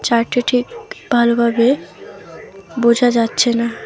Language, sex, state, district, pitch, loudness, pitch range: Bengali, female, West Bengal, Alipurduar, 240 Hz, -15 LUFS, 235-250 Hz